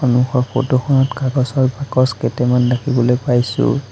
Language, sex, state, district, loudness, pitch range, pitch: Assamese, male, Assam, Sonitpur, -16 LUFS, 125-135 Hz, 130 Hz